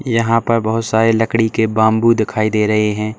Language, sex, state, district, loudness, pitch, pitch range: Hindi, male, Uttar Pradesh, Saharanpur, -15 LUFS, 110 Hz, 110-115 Hz